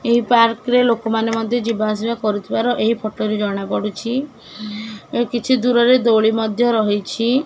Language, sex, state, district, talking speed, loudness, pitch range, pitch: Odia, female, Odisha, Khordha, 155 wpm, -18 LUFS, 215-240 Hz, 230 Hz